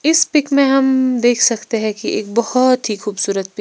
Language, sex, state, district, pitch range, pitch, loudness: Hindi, female, Punjab, Pathankot, 210-265 Hz, 240 Hz, -15 LUFS